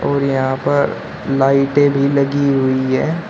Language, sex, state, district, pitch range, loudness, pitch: Hindi, male, Uttar Pradesh, Shamli, 135-140 Hz, -16 LUFS, 140 Hz